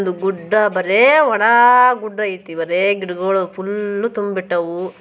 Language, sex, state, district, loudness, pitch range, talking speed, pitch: Kannada, female, Karnataka, Bijapur, -16 LUFS, 185-215 Hz, 120 wpm, 195 Hz